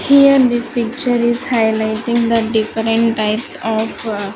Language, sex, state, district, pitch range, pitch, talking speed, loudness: English, female, Andhra Pradesh, Sri Satya Sai, 220-240 Hz, 230 Hz, 140 wpm, -15 LUFS